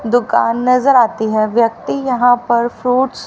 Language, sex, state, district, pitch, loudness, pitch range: Hindi, female, Haryana, Rohtak, 245 Hz, -14 LUFS, 230-250 Hz